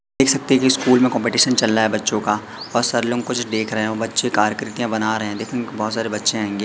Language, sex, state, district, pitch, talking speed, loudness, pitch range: Hindi, male, Madhya Pradesh, Katni, 115 Hz, 260 wpm, -19 LUFS, 110-120 Hz